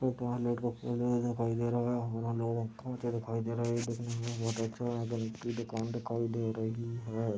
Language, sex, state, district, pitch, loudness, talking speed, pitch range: Hindi, male, Uttar Pradesh, Deoria, 115 Hz, -35 LUFS, 105 wpm, 115-120 Hz